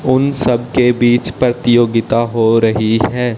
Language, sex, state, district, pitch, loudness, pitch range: Hindi, male, Haryana, Jhajjar, 120 Hz, -13 LUFS, 115-125 Hz